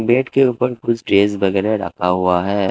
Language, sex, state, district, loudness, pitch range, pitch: Hindi, male, Delhi, New Delhi, -17 LUFS, 95-120 Hz, 100 Hz